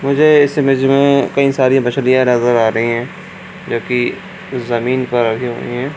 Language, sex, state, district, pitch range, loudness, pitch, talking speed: Hindi, male, Bihar, Jamui, 120-140 Hz, -14 LUFS, 130 Hz, 180 wpm